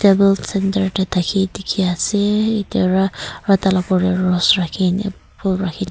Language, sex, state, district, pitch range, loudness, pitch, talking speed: Nagamese, female, Nagaland, Kohima, 185-195 Hz, -18 LUFS, 190 Hz, 140 wpm